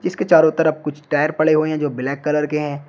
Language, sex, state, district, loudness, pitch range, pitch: Hindi, male, Uttar Pradesh, Shamli, -18 LUFS, 150-155 Hz, 150 Hz